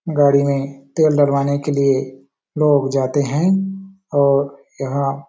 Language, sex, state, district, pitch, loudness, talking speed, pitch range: Hindi, male, Chhattisgarh, Balrampur, 140 Hz, -17 LUFS, 135 wpm, 140-150 Hz